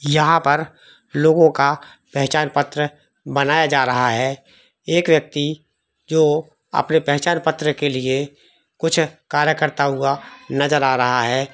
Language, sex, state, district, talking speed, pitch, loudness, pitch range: Hindi, male, Jharkhand, Jamtara, 135 wpm, 145 Hz, -18 LUFS, 140-155 Hz